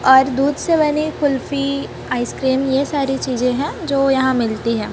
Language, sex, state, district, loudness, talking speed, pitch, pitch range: Hindi, female, Chhattisgarh, Raipur, -18 LUFS, 170 wpm, 270 Hz, 260-285 Hz